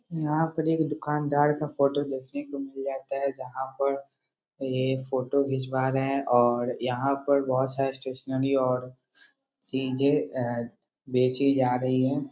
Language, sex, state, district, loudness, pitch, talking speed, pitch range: Hindi, male, Bihar, Muzaffarpur, -27 LUFS, 135 Hz, 155 wpm, 130-140 Hz